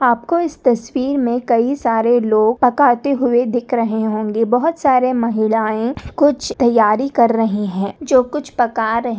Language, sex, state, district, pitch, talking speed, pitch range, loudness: Hindi, female, Maharashtra, Nagpur, 240 Hz, 155 wpm, 225-260 Hz, -16 LUFS